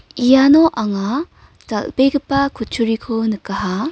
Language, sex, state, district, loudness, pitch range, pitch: Garo, female, Meghalaya, North Garo Hills, -17 LUFS, 220-275 Hz, 250 Hz